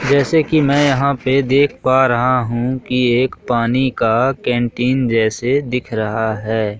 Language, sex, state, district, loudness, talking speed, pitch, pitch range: Hindi, male, Madhya Pradesh, Katni, -16 LUFS, 160 wpm, 130 Hz, 120-135 Hz